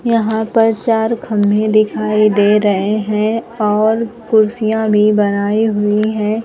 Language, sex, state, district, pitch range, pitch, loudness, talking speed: Hindi, female, Bihar, Kaimur, 210-225 Hz, 215 Hz, -14 LUFS, 130 wpm